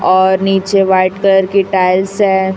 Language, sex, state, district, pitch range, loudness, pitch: Hindi, female, Chhattisgarh, Raipur, 185-195 Hz, -12 LUFS, 190 Hz